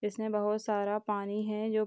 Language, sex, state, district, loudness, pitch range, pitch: Hindi, female, Bihar, Darbhanga, -33 LUFS, 210-215 Hz, 210 Hz